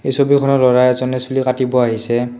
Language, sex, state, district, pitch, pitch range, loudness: Assamese, male, Assam, Kamrup Metropolitan, 130 Hz, 125-135 Hz, -15 LUFS